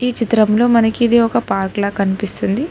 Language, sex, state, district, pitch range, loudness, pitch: Telugu, female, Telangana, Hyderabad, 200-235 Hz, -15 LUFS, 220 Hz